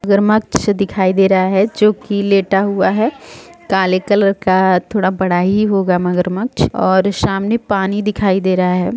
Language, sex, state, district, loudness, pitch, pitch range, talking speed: Hindi, female, Jharkhand, Sahebganj, -15 LUFS, 195 Hz, 185-205 Hz, 160 wpm